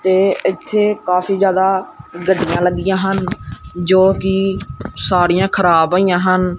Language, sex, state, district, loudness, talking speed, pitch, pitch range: Punjabi, male, Punjab, Kapurthala, -15 LUFS, 120 wpm, 185 Hz, 180-195 Hz